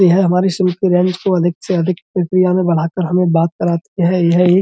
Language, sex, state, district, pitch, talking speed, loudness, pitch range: Hindi, male, Uttar Pradesh, Budaun, 180 Hz, 210 wpm, -15 LUFS, 175-185 Hz